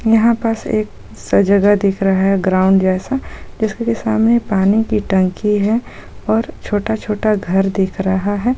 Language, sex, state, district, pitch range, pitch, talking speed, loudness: Hindi, female, Jharkhand, Sahebganj, 190-220 Hz, 205 Hz, 155 wpm, -16 LUFS